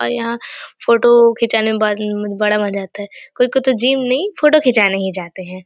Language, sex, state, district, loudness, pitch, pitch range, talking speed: Hindi, female, Chhattisgarh, Raigarh, -15 LUFS, 220 Hz, 205-250 Hz, 210 wpm